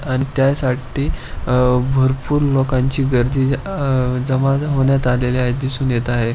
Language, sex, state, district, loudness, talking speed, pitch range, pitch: Marathi, male, Maharashtra, Pune, -17 LUFS, 130 wpm, 125-135 Hz, 130 Hz